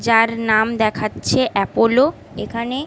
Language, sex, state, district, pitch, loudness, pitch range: Bengali, female, West Bengal, Kolkata, 230 Hz, -18 LUFS, 215-235 Hz